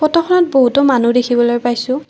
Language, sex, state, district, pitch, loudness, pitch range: Assamese, female, Assam, Kamrup Metropolitan, 260 Hz, -13 LUFS, 240-300 Hz